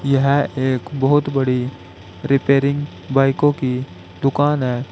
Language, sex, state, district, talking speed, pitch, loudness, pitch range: Hindi, male, Uttar Pradesh, Saharanpur, 110 wpm, 135 Hz, -18 LUFS, 130-140 Hz